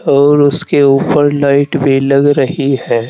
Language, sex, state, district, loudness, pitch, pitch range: Hindi, male, Uttar Pradesh, Saharanpur, -11 LUFS, 140 Hz, 135-145 Hz